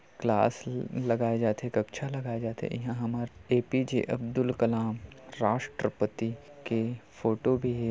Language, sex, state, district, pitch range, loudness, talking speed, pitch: Hindi, male, Chhattisgarh, Kabirdham, 115-125 Hz, -30 LUFS, 145 wpm, 115 Hz